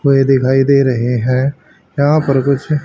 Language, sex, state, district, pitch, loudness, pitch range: Hindi, male, Haryana, Rohtak, 135 Hz, -13 LUFS, 130-140 Hz